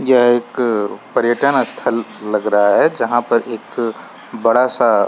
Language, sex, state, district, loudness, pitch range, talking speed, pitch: Hindi, male, Bihar, Saran, -16 LUFS, 105-120 Hz, 140 wpm, 115 Hz